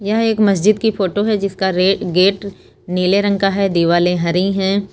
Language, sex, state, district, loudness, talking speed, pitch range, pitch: Hindi, female, Uttar Pradesh, Lucknow, -16 LUFS, 185 wpm, 185-205 Hz, 195 Hz